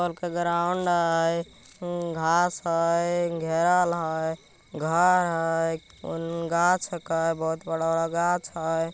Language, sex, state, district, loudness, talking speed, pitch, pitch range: Magahi, male, Bihar, Jamui, -25 LUFS, 135 wpm, 170 Hz, 165-175 Hz